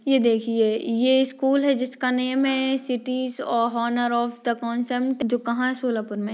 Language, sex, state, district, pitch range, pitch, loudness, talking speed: Hindi, female, Maharashtra, Solapur, 235-260 Hz, 250 Hz, -23 LUFS, 180 wpm